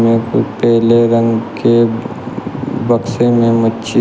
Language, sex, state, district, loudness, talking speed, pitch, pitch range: Hindi, male, Uttar Pradesh, Shamli, -13 LUFS, 135 wpm, 115 Hz, 115-120 Hz